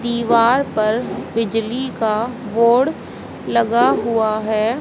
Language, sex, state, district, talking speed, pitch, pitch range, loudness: Hindi, female, Haryana, Rohtak, 100 wpm, 230 Hz, 220-245 Hz, -18 LUFS